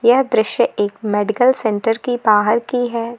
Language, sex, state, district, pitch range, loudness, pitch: Hindi, female, Jharkhand, Garhwa, 215-245 Hz, -17 LUFS, 230 Hz